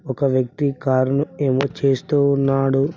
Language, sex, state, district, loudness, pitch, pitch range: Telugu, male, Telangana, Mahabubabad, -19 LUFS, 135 Hz, 130-140 Hz